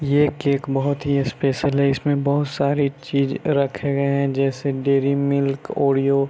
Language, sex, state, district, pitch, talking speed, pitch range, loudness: Hindi, male, Bihar, Begusarai, 140 Hz, 180 wpm, 135-140 Hz, -21 LUFS